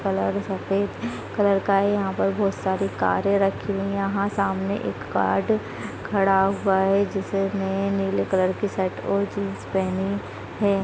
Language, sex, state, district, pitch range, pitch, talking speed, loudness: Hindi, female, Maharashtra, Solapur, 195-200 Hz, 195 Hz, 165 wpm, -24 LUFS